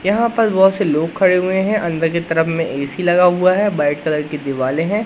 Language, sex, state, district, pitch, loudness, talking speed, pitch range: Hindi, male, Madhya Pradesh, Katni, 175 Hz, -16 LUFS, 250 wpm, 155-195 Hz